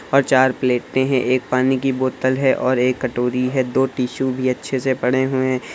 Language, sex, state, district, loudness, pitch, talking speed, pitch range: Hindi, male, Bihar, Saharsa, -19 LUFS, 130 Hz, 220 wpm, 125-130 Hz